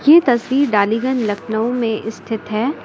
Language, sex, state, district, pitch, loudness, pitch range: Hindi, female, Uttar Pradesh, Lucknow, 230 Hz, -17 LUFS, 220-260 Hz